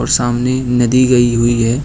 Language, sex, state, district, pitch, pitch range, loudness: Hindi, male, Uttar Pradesh, Lucknow, 120 Hz, 120-125 Hz, -13 LUFS